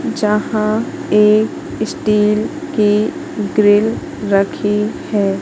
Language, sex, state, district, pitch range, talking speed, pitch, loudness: Hindi, female, Madhya Pradesh, Katni, 210-220 Hz, 80 wpm, 210 Hz, -16 LUFS